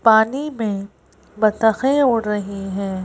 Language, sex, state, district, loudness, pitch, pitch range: Hindi, female, Madhya Pradesh, Bhopal, -19 LUFS, 215 Hz, 200-230 Hz